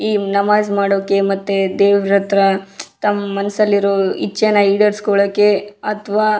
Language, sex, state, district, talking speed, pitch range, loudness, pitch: Kannada, female, Karnataka, Raichur, 95 wpm, 200-210 Hz, -15 LUFS, 200 Hz